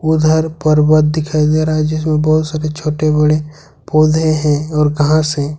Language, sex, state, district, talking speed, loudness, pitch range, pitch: Hindi, male, Jharkhand, Ranchi, 170 wpm, -14 LUFS, 150-155 Hz, 155 Hz